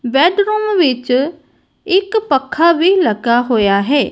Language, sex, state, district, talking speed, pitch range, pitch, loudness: Punjabi, female, Punjab, Kapurthala, 115 wpm, 250-380 Hz, 295 Hz, -14 LUFS